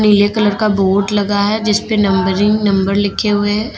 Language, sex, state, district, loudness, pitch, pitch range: Hindi, female, Uttar Pradesh, Lucknow, -14 LUFS, 205 Hz, 200-210 Hz